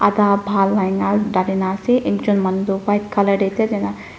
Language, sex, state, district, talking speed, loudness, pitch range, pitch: Nagamese, female, Nagaland, Dimapur, 170 wpm, -18 LUFS, 190-205 Hz, 200 Hz